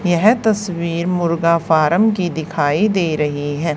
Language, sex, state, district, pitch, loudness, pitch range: Hindi, female, Haryana, Charkhi Dadri, 170 Hz, -17 LUFS, 155-185 Hz